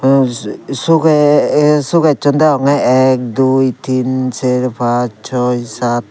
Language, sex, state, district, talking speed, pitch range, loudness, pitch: Chakma, male, Tripura, Dhalai, 110 wpm, 125-145 Hz, -13 LUFS, 130 Hz